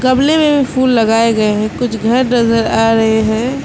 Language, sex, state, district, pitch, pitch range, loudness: Hindi, female, West Bengal, Alipurduar, 230 Hz, 220-255 Hz, -12 LUFS